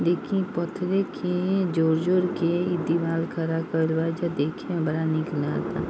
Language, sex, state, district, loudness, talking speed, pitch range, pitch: Bhojpuri, female, Bihar, East Champaran, -25 LUFS, 185 wpm, 160-180 Hz, 170 Hz